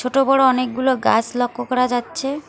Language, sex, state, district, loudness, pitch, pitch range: Bengali, female, West Bengal, Alipurduar, -18 LUFS, 255 Hz, 245-270 Hz